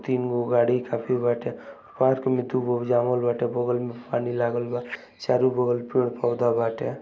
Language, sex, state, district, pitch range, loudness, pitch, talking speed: Bhojpuri, male, Bihar, Gopalganj, 120-125 Hz, -25 LUFS, 120 Hz, 145 wpm